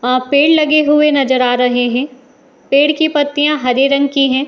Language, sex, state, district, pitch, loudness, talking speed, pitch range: Hindi, female, Uttar Pradesh, Etah, 275 Hz, -12 LUFS, 230 wpm, 255-295 Hz